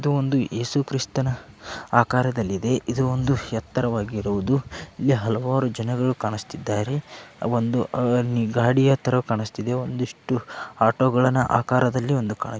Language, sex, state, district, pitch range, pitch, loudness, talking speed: Kannada, male, Karnataka, Dharwad, 115-130 Hz, 125 Hz, -23 LUFS, 105 wpm